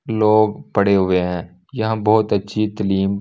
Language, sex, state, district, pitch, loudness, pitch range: Hindi, male, Delhi, New Delhi, 100 Hz, -18 LUFS, 95-110 Hz